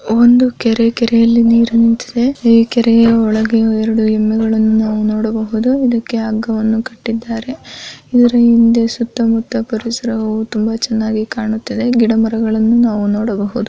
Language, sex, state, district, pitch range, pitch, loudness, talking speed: Kannada, female, Karnataka, Mysore, 220-235 Hz, 230 Hz, -13 LUFS, 105 wpm